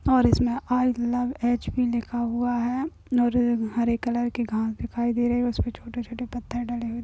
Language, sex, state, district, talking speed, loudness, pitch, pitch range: Hindi, female, Uttar Pradesh, Gorakhpur, 205 wpm, -25 LUFS, 240 Hz, 235-245 Hz